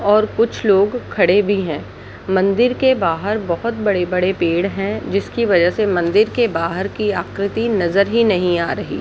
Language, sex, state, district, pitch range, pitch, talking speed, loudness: Hindi, female, Bihar, Jahanabad, 180-215 Hz, 200 Hz, 180 wpm, -17 LUFS